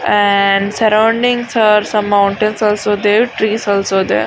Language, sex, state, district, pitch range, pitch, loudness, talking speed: Telugu, female, Andhra Pradesh, Srikakulam, 200-220 Hz, 210 Hz, -13 LUFS, 140 wpm